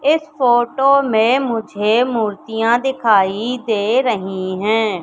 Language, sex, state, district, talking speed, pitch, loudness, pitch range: Hindi, female, Madhya Pradesh, Katni, 105 wpm, 230 Hz, -16 LUFS, 215-255 Hz